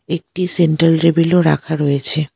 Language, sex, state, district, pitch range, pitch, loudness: Bengali, female, West Bengal, Alipurduar, 155-170 Hz, 165 Hz, -15 LUFS